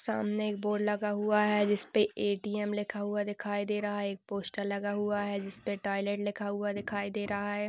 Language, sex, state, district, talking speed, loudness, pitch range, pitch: Hindi, female, Uttar Pradesh, Budaun, 225 wpm, -32 LUFS, 205-210 Hz, 205 Hz